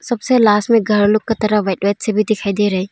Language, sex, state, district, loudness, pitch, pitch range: Hindi, female, Arunachal Pradesh, Longding, -15 LUFS, 215 Hz, 205-225 Hz